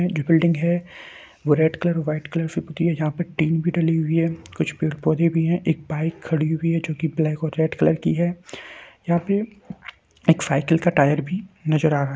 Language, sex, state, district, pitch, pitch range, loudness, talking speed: Hindi, male, Bihar, Samastipur, 165 Hz, 155-170 Hz, -22 LUFS, 225 wpm